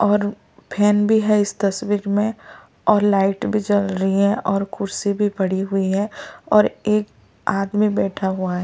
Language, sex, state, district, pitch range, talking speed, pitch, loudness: Hindi, male, Delhi, New Delhi, 195-210 Hz, 175 wpm, 205 Hz, -20 LUFS